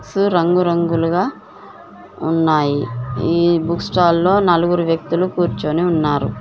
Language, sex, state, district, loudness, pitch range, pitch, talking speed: Telugu, female, Telangana, Mahabubabad, -17 LUFS, 160-175 Hz, 170 Hz, 105 wpm